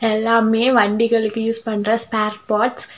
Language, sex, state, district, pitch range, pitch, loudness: Tamil, female, Tamil Nadu, Nilgiris, 215-230 Hz, 225 Hz, -18 LUFS